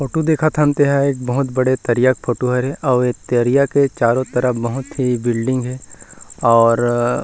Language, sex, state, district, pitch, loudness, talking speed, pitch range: Chhattisgarhi, male, Chhattisgarh, Rajnandgaon, 125 Hz, -17 LUFS, 185 wpm, 120-140 Hz